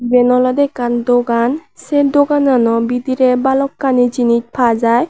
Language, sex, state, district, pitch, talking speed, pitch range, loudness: Chakma, male, Tripura, Unakoti, 250 Hz, 130 wpm, 240-270 Hz, -14 LUFS